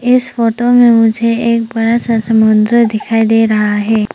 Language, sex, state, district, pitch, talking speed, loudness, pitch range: Hindi, female, Arunachal Pradesh, Papum Pare, 225 Hz, 175 wpm, -11 LUFS, 220-235 Hz